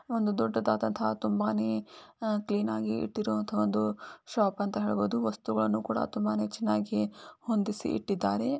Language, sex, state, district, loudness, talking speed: Kannada, female, Karnataka, Dharwad, -30 LUFS, 120 wpm